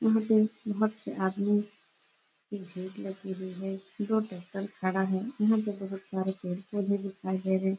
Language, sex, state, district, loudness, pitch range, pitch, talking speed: Hindi, female, Uttar Pradesh, Etah, -31 LUFS, 190-210 Hz, 195 Hz, 185 wpm